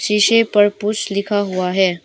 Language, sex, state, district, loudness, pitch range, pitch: Hindi, female, Arunachal Pradesh, Papum Pare, -16 LUFS, 190-210 Hz, 205 Hz